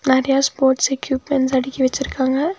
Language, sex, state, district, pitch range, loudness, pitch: Tamil, female, Tamil Nadu, Nilgiris, 260-275 Hz, -18 LUFS, 265 Hz